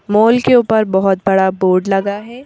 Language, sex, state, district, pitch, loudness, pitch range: Hindi, female, Madhya Pradesh, Bhopal, 200 Hz, -13 LUFS, 190-230 Hz